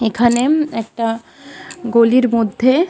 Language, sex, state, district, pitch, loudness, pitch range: Bengali, female, West Bengal, Malda, 240 Hz, -15 LUFS, 230-285 Hz